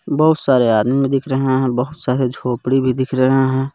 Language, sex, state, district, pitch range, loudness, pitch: Hindi, male, Jharkhand, Garhwa, 125-135 Hz, -16 LUFS, 130 Hz